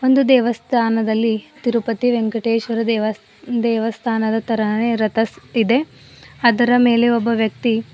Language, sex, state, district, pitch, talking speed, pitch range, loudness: Kannada, female, Karnataka, Bidar, 230 Hz, 105 wpm, 225-240 Hz, -18 LUFS